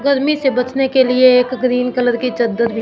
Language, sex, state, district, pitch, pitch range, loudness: Hindi, female, Punjab, Fazilka, 250 Hz, 245-265 Hz, -15 LUFS